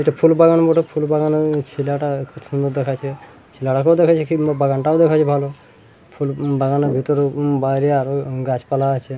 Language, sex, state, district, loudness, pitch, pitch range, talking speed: Bengali, male, West Bengal, Purulia, -17 LUFS, 140 Hz, 135-155 Hz, 150 wpm